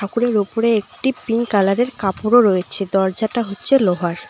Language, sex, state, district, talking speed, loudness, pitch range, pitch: Bengali, female, West Bengal, Cooch Behar, 140 wpm, -17 LUFS, 195-240 Hz, 215 Hz